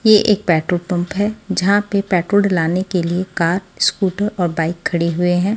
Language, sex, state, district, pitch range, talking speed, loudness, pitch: Hindi, female, Delhi, New Delhi, 175-205 Hz, 195 wpm, -17 LUFS, 185 Hz